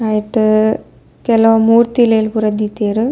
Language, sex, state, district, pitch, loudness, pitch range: Tulu, female, Karnataka, Dakshina Kannada, 220 Hz, -13 LUFS, 215-230 Hz